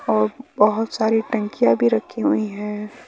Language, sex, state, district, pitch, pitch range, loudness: Hindi, male, Bihar, West Champaran, 215 Hz, 210-225 Hz, -20 LUFS